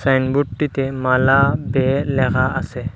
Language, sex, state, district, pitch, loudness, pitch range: Bengali, male, Assam, Hailakandi, 130 Hz, -18 LUFS, 130-140 Hz